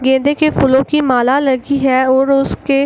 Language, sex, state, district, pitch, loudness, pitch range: Hindi, female, Bihar, Gaya, 270 Hz, -13 LUFS, 260-280 Hz